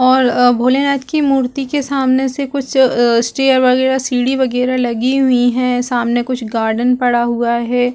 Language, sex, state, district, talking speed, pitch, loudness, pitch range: Hindi, female, Chhattisgarh, Balrampur, 175 wpm, 255 Hz, -14 LUFS, 245-265 Hz